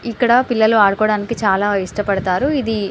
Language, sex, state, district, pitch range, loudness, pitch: Telugu, female, Telangana, Karimnagar, 200-235 Hz, -16 LUFS, 215 Hz